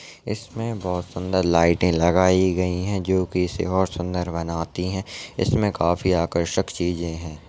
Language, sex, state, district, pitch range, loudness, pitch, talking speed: Hindi, male, Chhattisgarh, Raigarh, 85-95 Hz, -23 LUFS, 90 Hz, 160 wpm